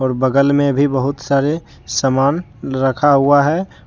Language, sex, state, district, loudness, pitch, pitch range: Hindi, male, Jharkhand, Deoghar, -16 LUFS, 140 Hz, 135-145 Hz